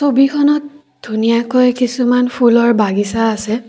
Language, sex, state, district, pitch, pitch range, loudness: Assamese, female, Assam, Kamrup Metropolitan, 245 Hz, 225-260 Hz, -14 LUFS